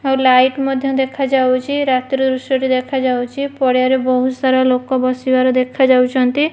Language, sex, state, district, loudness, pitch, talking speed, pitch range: Odia, female, Odisha, Malkangiri, -15 LUFS, 260 Hz, 145 wpm, 255-270 Hz